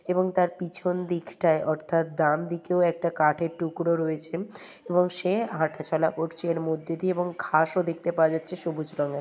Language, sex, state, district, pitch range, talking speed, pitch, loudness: Bengali, female, West Bengal, Kolkata, 160-180 Hz, 175 wpm, 170 Hz, -26 LUFS